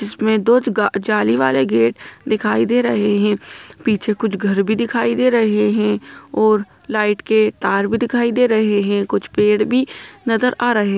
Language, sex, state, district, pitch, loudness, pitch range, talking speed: Hindi, male, Bihar, Gaya, 215 Hz, -16 LUFS, 205-235 Hz, 185 wpm